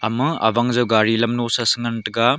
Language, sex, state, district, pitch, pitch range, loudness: Wancho, male, Arunachal Pradesh, Longding, 120 Hz, 115-120 Hz, -19 LUFS